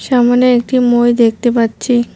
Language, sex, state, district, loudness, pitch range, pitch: Bengali, female, West Bengal, Cooch Behar, -12 LUFS, 235-250 Hz, 240 Hz